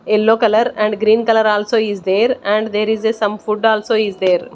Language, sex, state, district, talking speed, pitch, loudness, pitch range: English, female, Chandigarh, Chandigarh, 225 wpm, 215 Hz, -15 LUFS, 210-225 Hz